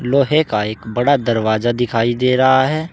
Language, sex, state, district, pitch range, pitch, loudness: Hindi, male, Uttar Pradesh, Saharanpur, 115-135 Hz, 125 Hz, -16 LUFS